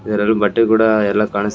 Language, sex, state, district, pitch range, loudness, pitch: Kannada, male, Karnataka, Raichur, 105-110 Hz, -15 LUFS, 105 Hz